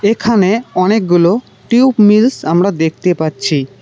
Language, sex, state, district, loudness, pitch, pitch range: Bengali, male, West Bengal, Cooch Behar, -12 LUFS, 195 Hz, 165-220 Hz